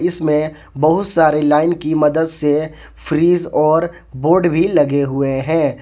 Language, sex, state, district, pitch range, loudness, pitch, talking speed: Hindi, male, Jharkhand, Ranchi, 150-165 Hz, -15 LUFS, 155 Hz, 145 wpm